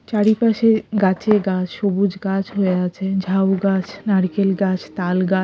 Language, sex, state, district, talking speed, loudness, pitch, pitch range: Bengali, female, Odisha, Khordha, 145 wpm, -19 LUFS, 195 Hz, 190-205 Hz